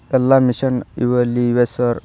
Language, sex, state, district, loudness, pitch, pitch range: Kannada, male, Karnataka, Koppal, -17 LUFS, 125 Hz, 120-130 Hz